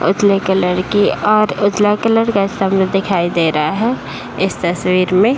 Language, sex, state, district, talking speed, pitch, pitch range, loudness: Hindi, female, Uttar Pradesh, Deoria, 165 wpm, 195 Hz, 185-210 Hz, -15 LUFS